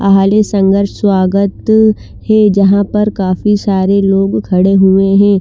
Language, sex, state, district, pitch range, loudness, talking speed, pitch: Hindi, female, Chandigarh, Chandigarh, 195-205 Hz, -10 LUFS, 145 wpm, 200 Hz